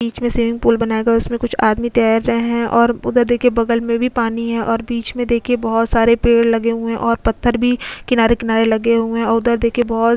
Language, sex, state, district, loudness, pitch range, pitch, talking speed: Hindi, female, Goa, North and South Goa, -16 LUFS, 230-235 Hz, 230 Hz, 240 wpm